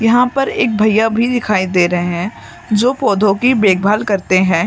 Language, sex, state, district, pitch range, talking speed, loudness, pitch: Hindi, female, Maharashtra, Mumbai Suburban, 190-235 Hz, 195 wpm, -14 LUFS, 215 Hz